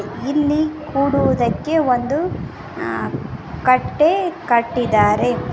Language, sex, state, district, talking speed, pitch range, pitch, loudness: Kannada, female, Karnataka, Koppal, 65 wpm, 245-310 Hz, 280 Hz, -18 LUFS